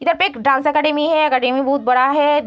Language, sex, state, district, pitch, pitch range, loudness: Hindi, female, Bihar, Begusarai, 290 Hz, 265-300 Hz, -16 LUFS